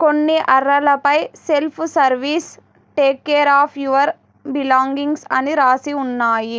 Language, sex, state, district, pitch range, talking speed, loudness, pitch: Telugu, female, Telangana, Hyderabad, 265-300 Hz, 110 wpm, -16 LUFS, 285 Hz